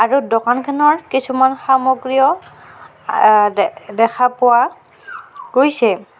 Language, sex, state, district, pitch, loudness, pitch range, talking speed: Assamese, female, Assam, Kamrup Metropolitan, 260 Hz, -15 LUFS, 230-270 Hz, 85 wpm